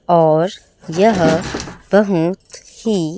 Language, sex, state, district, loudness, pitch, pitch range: Hindi, female, Chhattisgarh, Raipur, -16 LUFS, 175 Hz, 165-200 Hz